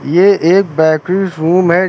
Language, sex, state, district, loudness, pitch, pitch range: Hindi, male, Uttar Pradesh, Lucknow, -12 LUFS, 180 Hz, 160-190 Hz